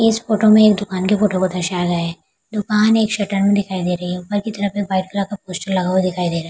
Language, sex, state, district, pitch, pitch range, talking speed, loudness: Hindi, female, Bihar, Araria, 195 Hz, 185-210 Hz, 275 wpm, -18 LUFS